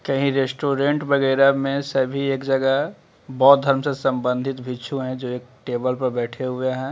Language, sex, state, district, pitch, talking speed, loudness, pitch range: Hindi, male, Bihar, Gaya, 135 Hz, 175 wpm, -21 LUFS, 130-140 Hz